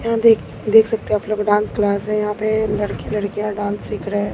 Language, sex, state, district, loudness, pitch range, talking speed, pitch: Hindi, female, Bihar, Katihar, -19 LUFS, 205-215 Hz, 250 wpm, 210 Hz